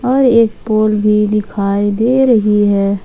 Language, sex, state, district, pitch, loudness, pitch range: Hindi, female, Jharkhand, Ranchi, 210 Hz, -12 LUFS, 205-230 Hz